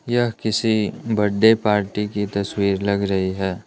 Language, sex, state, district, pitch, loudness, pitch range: Hindi, male, Arunachal Pradesh, Lower Dibang Valley, 105 Hz, -20 LUFS, 100-110 Hz